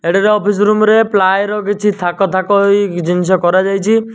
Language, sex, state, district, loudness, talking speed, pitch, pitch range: Odia, male, Odisha, Nuapada, -13 LUFS, 190 wpm, 200 Hz, 185-210 Hz